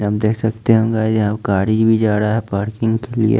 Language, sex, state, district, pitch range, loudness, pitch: Hindi, male, Chandigarh, Chandigarh, 105-110 Hz, -17 LUFS, 110 Hz